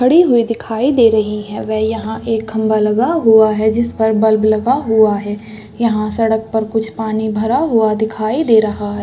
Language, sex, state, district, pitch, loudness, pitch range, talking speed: Hindi, female, Chhattisgarh, Raigarh, 220 Hz, -14 LUFS, 215-225 Hz, 200 wpm